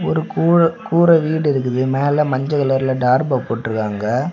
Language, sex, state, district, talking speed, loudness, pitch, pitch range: Tamil, male, Tamil Nadu, Kanyakumari, 140 wpm, -17 LUFS, 135 Hz, 125-160 Hz